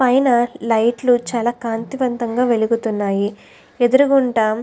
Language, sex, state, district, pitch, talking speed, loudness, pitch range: Telugu, female, Andhra Pradesh, Krishna, 240 Hz, 90 wpm, -18 LUFS, 225-250 Hz